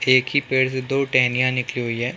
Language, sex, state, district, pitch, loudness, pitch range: Hindi, male, Uttar Pradesh, Gorakhpur, 130 Hz, -20 LUFS, 125-130 Hz